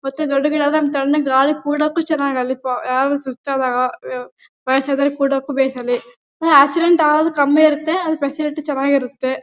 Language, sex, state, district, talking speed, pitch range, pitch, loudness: Kannada, female, Karnataka, Bellary, 170 wpm, 265-300 Hz, 280 Hz, -17 LUFS